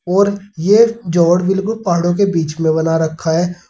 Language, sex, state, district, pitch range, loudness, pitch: Hindi, male, Uttar Pradesh, Saharanpur, 165-200 Hz, -15 LUFS, 175 Hz